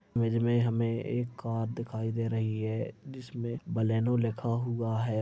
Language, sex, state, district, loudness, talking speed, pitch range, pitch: Hindi, male, Bihar, Purnia, -31 LUFS, 160 wpm, 115-120 Hz, 115 Hz